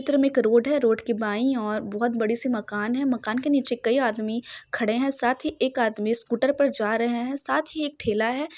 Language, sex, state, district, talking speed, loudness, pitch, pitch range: Hindi, female, Jharkhand, Sahebganj, 245 wpm, -24 LUFS, 240 Hz, 225-270 Hz